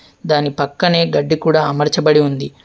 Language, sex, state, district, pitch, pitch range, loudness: Telugu, male, Telangana, Adilabad, 150 Hz, 145-160 Hz, -15 LUFS